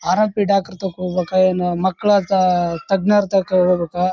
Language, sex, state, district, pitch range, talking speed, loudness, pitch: Kannada, male, Karnataka, Bellary, 180-195 Hz, 100 wpm, -17 LUFS, 185 Hz